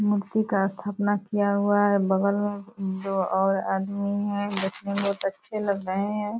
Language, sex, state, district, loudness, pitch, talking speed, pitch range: Hindi, female, Bihar, Purnia, -25 LUFS, 200 Hz, 180 wpm, 195-205 Hz